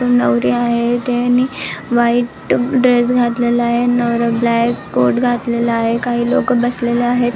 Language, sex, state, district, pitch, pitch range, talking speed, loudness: Marathi, female, Maharashtra, Nagpur, 240 Hz, 235-245 Hz, 130 wpm, -15 LUFS